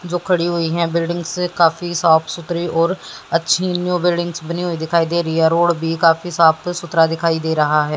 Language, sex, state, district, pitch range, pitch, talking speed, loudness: Hindi, female, Haryana, Jhajjar, 165-175 Hz, 170 Hz, 205 wpm, -17 LUFS